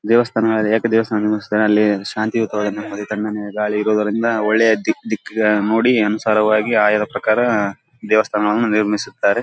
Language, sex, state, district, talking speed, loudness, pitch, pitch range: Kannada, male, Karnataka, Bellary, 110 wpm, -17 LUFS, 105 Hz, 105-110 Hz